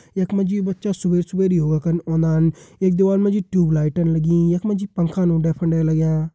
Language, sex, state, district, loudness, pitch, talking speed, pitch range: Hindi, male, Uttarakhand, Uttarkashi, -19 LUFS, 170 Hz, 200 wpm, 160-190 Hz